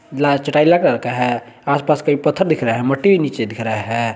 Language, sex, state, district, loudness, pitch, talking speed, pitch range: Hindi, male, Jharkhand, Garhwa, -17 LUFS, 135 Hz, 200 wpm, 115-150 Hz